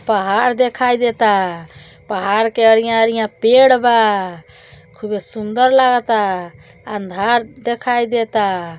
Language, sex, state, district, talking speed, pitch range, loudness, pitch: Bhojpuri, male, Uttar Pradesh, Deoria, 100 wpm, 195-240 Hz, -15 LUFS, 220 Hz